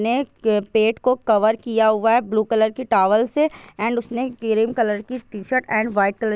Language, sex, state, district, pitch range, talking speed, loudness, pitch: Hindi, female, Bihar, Jahanabad, 215-245 Hz, 210 wpm, -20 LUFS, 225 Hz